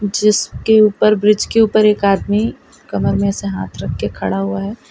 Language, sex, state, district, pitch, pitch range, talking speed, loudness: Hindi, female, Gujarat, Valsad, 210 Hz, 195-215 Hz, 195 wpm, -15 LUFS